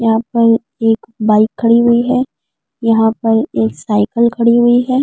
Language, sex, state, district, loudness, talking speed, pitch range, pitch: Hindi, female, Delhi, New Delhi, -13 LUFS, 165 wpm, 225-235 Hz, 230 Hz